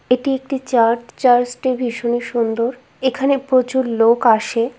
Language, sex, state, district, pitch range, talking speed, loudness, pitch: Bengali, female, West Bengal, Kolkata, 235-260 Hz, 140 wpm, -17 LUFS, 245 Hz